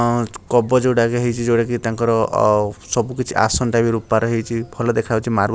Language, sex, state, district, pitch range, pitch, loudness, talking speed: Odia, male, Odisha, Sambalpur, 115-120 Hz, 115 Hz, -18 LUFS, 215 wpm